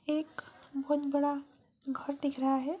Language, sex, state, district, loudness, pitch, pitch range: Hindi, female, Bihar, Jamui, -34 LUFS, 285 Hz, 275-295 Hz